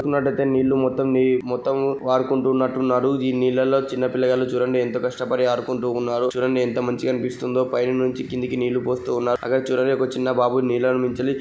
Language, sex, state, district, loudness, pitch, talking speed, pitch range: Telugu, male, Andhra Pradesh, Guntur, -21 LUFS, 130 Hz, 165 wpm, 125-130 Hz